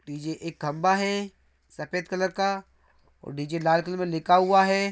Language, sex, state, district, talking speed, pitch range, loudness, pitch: Hindi, male, Bihar, Araria, 205 wpm, 160-195 Hz, -25 LUFS, 180 Hz